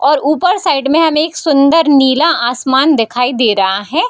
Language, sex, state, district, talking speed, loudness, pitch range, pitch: Hindi, female, Bihar, Darbhanga, 190 wpm, -11 LUFS, 245-325 Hz, 285 Hz